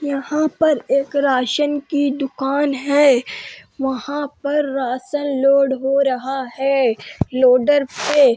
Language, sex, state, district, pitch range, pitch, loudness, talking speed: Hindi, female, Uttar Pradesh, Hamirpur, 265-290 Hz, 275 Hz, -18 LUFS, 120 wpm